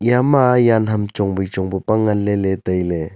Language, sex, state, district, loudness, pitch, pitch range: Wancho, male, Arunachal Pradesh, Longding, -17 LUFS, 105 Hz, 95-115 Hz